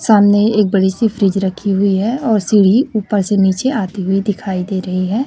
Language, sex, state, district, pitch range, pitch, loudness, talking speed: Hindi, female, Chhattisgarh, Raipur, 190-215 Hz, 200 Hz, -14 LUFS, 215 wpm